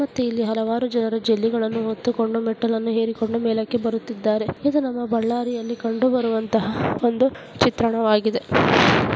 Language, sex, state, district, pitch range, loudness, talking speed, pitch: Kannada, female, Karnataka, Bellary, 225-240 Hz, -21 LUFS, 105 wpm, 230 Hz